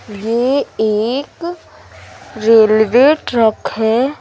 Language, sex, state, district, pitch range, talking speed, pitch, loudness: Hindi, female, Madhya Pradesh, Umaria, 220-275 Hz, 70 wpm, 230 Hz, -14 LUFS